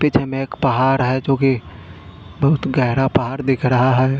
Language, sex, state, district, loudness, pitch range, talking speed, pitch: Hindi, male, Punjab, Fazilka, -18 LUFS, 125-135 Hz, 185 wpm, 130 Hz